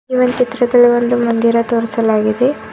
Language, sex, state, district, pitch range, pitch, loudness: Kannada, female, Karnataka, Bidar, 230-250 Hz, 240 Hz, -14 LUFS